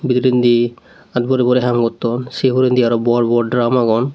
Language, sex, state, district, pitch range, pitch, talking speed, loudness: Chakma, male, Tripura, Dhalai, 120-125 Hz, 120 Hz, 190 wpm, -15 LUFS